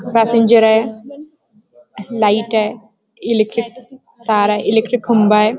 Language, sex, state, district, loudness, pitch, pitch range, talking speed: Marathi, female, Maharashtra, Chandrapur, -14 LUFS, 220 Hz, 210-235 Hz, 65 wpm